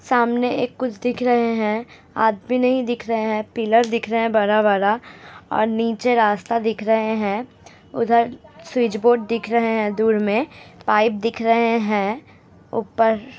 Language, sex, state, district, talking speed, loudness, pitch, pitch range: Hindi, female, Uttar Pradesh, Hamirpur, 165 wpm, -20 LUFS, 230 Hz, 215-240 Hz